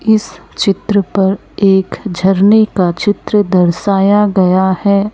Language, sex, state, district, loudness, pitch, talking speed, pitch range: Hindi, male, Chhattisgarh, Raipur, -12 LUFS, 195 Hz, 115 wpm, 190-205 Hz